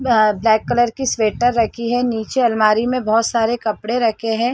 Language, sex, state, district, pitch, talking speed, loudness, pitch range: Hindi, female, Chhattisgarh, Rajnandgaon, 230 Hz, 185 wpm, -17 LUFS, 220-240 Hz